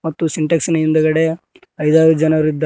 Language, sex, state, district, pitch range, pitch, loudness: Kannada, male, Karnataka, Koppal, 155-160 Hz, 160 Hz, -15 LUFS